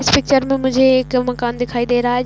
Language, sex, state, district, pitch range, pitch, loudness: Hindi, female, Chhattisgarh, Raigarh, 245-260 Hz, 250 Hz, -16 LUFS